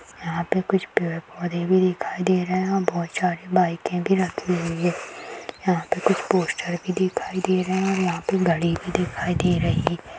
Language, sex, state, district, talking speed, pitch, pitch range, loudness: Hindi, female, Maharashtra, Aurangabad, 200 wpm, 180 Hz, 170-185 Hz, -23 LUFS